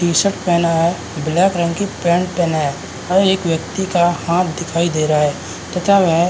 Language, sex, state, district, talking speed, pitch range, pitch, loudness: Hindi, male, Uttarakhand, Uttarkashi, 200 wpm, 165-185 Hz, 170 Hz, -17 LUFS